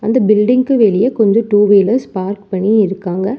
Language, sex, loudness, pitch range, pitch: Tamil, female, -13 LUFS, 195-230 Hz, 210 Hz